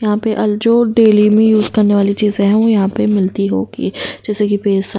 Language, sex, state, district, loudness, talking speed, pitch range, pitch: Hindi, female, Chhattisgarh, Kabirdham, -13 LUFS, 215 wpm, 200-220 Hz, 210 Hz